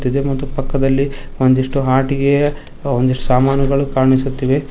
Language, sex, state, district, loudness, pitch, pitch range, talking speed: Kannada, male, Karnataka, Koppal, -16 LUFS, 135 Hz, 130-140 Hz, 100 wpm